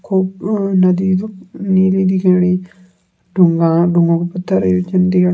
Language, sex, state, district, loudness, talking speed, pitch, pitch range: Kumaoni, male, Uttarakhand, Tehri Garhwal, -14 LUFS, 135 wpm, 185 Hz, 175-190 Hz